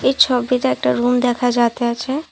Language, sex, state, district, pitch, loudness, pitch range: Bengali, female, Assam, Kamrup Metropolitan, 245 Hz, -17 LUFS, 240-255 Hz